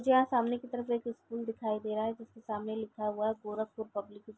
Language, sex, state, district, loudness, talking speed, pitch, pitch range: Hindi, female, Uttar Pradesh, Gorakhpur, -35 LUFS, 235 wpm, 220 Hz, 215-235 Hz